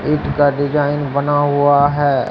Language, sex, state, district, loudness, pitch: Hindi, male, Bihar, Katihar, -15 LUFS, 145 Hz